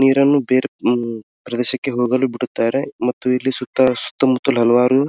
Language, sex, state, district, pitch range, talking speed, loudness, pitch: Kannada, male, Karnataka, Dharwad, 125-135 Hz, 120 wpm, -18 LUFS, 130 Hz